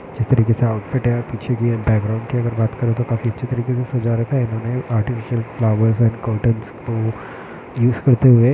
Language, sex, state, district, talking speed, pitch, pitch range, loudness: Hindi, male, Bihar, East Champaran, 205 wpm, 120 Hz, 115-125 Hz, -19 LUFS